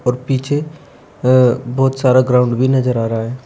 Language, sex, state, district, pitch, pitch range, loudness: Hindi, male, Uttar Pradesh, Shamli, 130 Hz, 125-135 Hz, -15 LUFS